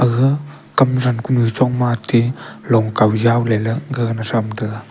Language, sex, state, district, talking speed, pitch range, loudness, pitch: Wancho, male, Arunachal Pradesh, Longding, 160 wpm, 115-130 Hz, -17 LUFS, 120 Hz